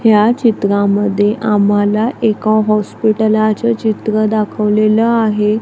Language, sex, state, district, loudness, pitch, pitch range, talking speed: Marathi, female, Maharashtra, Gondia, -13 LUFS, 215 Hz, 210-220 Hz, 85 wpm